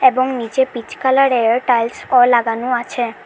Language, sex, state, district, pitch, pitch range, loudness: Bengali, female, Assam, Hailakandi, 245 Hz, 235-260 Hz, -16 LUFS